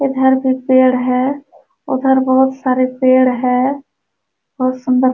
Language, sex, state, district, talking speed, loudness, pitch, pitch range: Hindi, female, Uttar Pradesh, Jalaun, 140 wpm, -14 LUFS, 260 Hz, 255-265 Hz